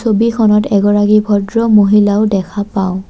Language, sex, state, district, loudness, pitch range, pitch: Assamese, female, Assam, Kamrup Metropolitan, -12 LUFS, 200-215 Hz, 205 Hz